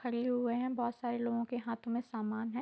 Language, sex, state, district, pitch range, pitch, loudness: Hindi, female, Bihar, Sitamarhi, 235-245 Hz, 240 Hz, -36 LUFS